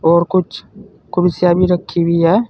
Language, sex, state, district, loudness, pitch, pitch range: Hindi, male, Uttar Pradesh, Saharanpur, -15 LUFS, 175 Hz, 170-185 Hz